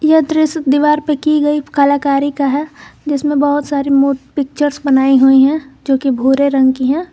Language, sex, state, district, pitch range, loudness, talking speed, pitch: Hindi, female, Jharkhand, Garhwa, 275-295 Hz, -13 LUFS, 195 wpm, 285 Hz